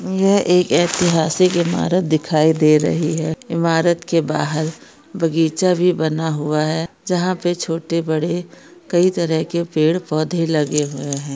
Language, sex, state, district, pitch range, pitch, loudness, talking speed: Hindi, female, Rajasthan, Churu, 155-175 Hz, 165 Hz, -18 LUFS, 150 wpm